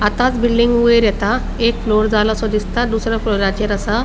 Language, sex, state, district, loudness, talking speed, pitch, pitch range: Konkani, female, Goa, North and South Goa, -16 LUFS, 205 wpm, 225 Hz, 210-235 Hz